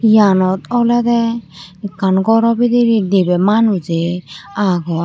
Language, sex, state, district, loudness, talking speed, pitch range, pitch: Chakma, female, Tripura, Unakoti, -14 LUFS, 95 wpm, 180-230 Hz, 200 Hz